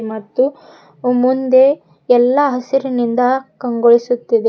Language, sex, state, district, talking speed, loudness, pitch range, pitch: Kannada, female, Karnataka, Koppal, 65 wpm, -15 LUFS, 240-265 Hz, 250 Hz